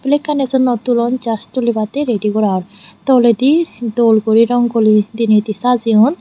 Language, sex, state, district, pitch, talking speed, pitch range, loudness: Chakma, female, Tripura, Unakoti, 235 Hz, 145 wpm, 215-255 Hz, -14 LUFS